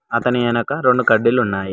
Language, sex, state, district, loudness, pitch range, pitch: Telugu, male, Telangana, Mahabubabad, -17 LUFS, 115-125 Hz, 120 Hz